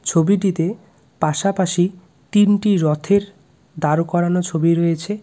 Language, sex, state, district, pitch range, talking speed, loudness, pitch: Bengali, male, West Bengal, Cooch Behar, 160-195 Hz, 90 wpm, -18 LUFS, 175 Hz